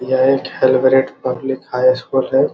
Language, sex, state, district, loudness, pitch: Hindi, male, Bihar, Muzaffarpur, -16 LUFS, 130 Hz